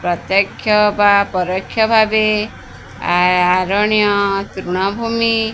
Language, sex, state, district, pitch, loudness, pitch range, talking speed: Odia, female, Odisha, Sambalpur, 200 Hz, -15 LUFS, 185-215 Hz, 75 wpm